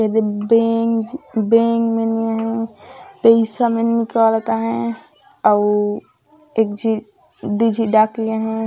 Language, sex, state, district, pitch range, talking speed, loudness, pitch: Chhattisgarhi, female, Chhattisgarh, Raigarh, 215-230 Hz, 125 wpm, -17 LUFS, 225 Hz